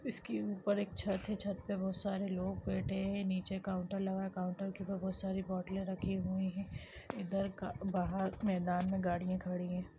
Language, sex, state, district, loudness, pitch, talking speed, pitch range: Hindi, female, Chhattisgarh, Sarguja, -38 LUFS, 190 Hz, 170 wpm, 185-195 Hz